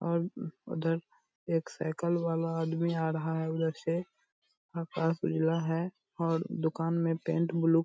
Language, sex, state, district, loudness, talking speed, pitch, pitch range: Hindi, male, Bihar, Purnia, -32 LUFS, 155 wpm, 165 Hz, 165-170 Hz